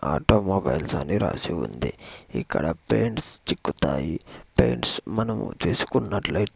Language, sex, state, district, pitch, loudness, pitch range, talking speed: Telugu, male, Andhra Pradesh, Sri Satya Sai, 105 Hz, -25 LUFS, 95-110 Hz, 90 wpm